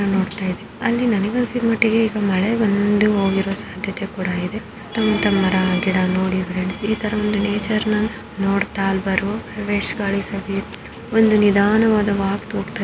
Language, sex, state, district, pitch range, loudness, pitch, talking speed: Kannada, female, Karnataka, Gulbarga, 195-215 Hz, -20 LUFS, 205 Hz, 130 wpm